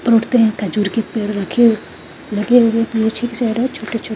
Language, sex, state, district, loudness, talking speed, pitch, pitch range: Hindi, female, Uttarakhand, Tehri Garhwal, -16 LUFS, 130 wpm, 225 Hz, 215-235 Hz